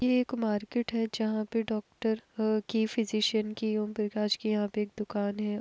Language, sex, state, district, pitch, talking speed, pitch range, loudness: Hindi, female, Uttar Pradesh, Etah, 215 Hz, 180 wpm, 210-225 Hz, -31 LUFS